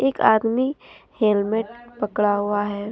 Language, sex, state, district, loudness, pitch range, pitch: Hindi, female, Jharkhand, Deoghar, -21 LUFS, 205-240 Hz, 215 Hz